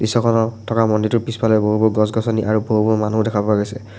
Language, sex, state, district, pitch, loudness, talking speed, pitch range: Assamese, male, Assam, Sonitpur, 110 Hz, -18 LUFS, 180 wpm, 105-115 Hz